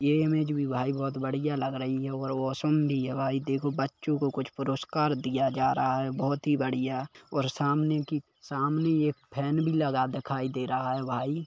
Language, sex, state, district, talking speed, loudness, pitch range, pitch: Hindi, male, Chhattisgarh, Kabirdham, 205 wpm, -29 LUFS, 130-150 Hz, 135 Hz